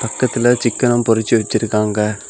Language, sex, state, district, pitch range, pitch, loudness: Tamil, male, Tamil Nadu, Kanyakumari, 105-120 Hz, 115 Hz, -16 LUFS